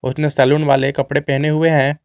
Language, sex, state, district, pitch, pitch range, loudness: Hindi, male, Jharkhand, Garhwa, 140 Hz, 135-150 Hz, -15 LUFS